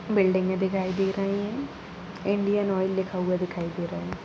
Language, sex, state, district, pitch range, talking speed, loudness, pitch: Hindi, female, Bihar, Jahanabad, 180-200 Hz, 185 wpm, -27 LUFS, 190 Hz